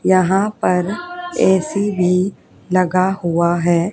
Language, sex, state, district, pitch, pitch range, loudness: Hindi, female, Haryana, Charkhi Dadri, 185 Hz, 180-195 Hz, -17 LUFS